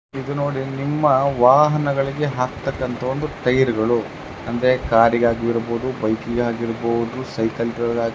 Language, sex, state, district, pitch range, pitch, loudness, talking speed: Kannada, male, Karnataka, Chamarajanagar, 115-135 Hz, 125 Hz, -20 LUFS, 90 wpm